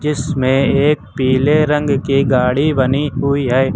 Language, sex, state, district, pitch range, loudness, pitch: Hindi, male, Uttar Pradesh, Lucknow, 130-150 Hz, -15 LUFS, 135 Hz